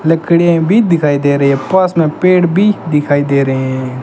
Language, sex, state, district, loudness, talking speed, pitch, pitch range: Hindi, male, Rajasthan, Bikaner, -12 LUFS, 210 wpm, 160 Hz, 140-175 Hz